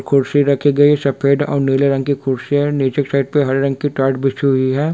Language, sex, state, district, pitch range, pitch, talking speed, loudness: Hindi, male, Bihar, Sitamarhi, 135-145 Hz, 140 Hz, 255 wpm, -16 LUFS